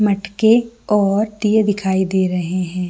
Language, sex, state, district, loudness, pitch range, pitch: Hindi, female, Jharkhand, Jamtara, -17 LUFS, 190-215 Hz, 200 Hz